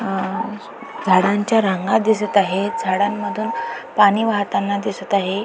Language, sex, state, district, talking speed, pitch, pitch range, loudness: Marathi, female, Maharashtra, Pune, 110 wpm, 200 Hz, 190-220 Hz, -19 LUFS